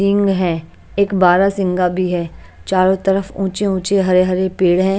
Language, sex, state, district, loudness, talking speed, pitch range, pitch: Hindi, female, Chhattisgarh, Raipur, -16 LUFS, 145 wpm, 180-195 Hz, 190 Hz